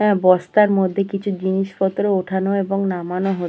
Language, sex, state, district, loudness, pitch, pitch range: Bengali, female, West Bengal, Purulia, -19 LUFS, 195 Hz, 185-200 Hz